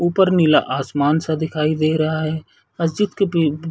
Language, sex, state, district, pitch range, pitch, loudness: Hindi, male, Chhattisgarh, Bilaspur, 155-170 Hz, 160 Hz, -19 LUFS